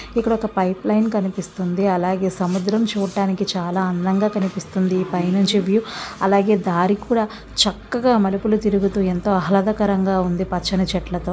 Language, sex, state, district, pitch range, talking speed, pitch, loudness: Telugu, female, Andhra Pradesh, Visakhapatnam, 185-210 Hz, 125 wpm, 195 Hz, -20 LUFS